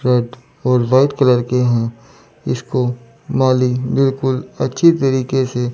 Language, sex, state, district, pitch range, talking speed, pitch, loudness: Hindi, male, Chandigarh, Chandigarh, 125-135 Hz, 125 wpm, 125 Hz, -16 LUFS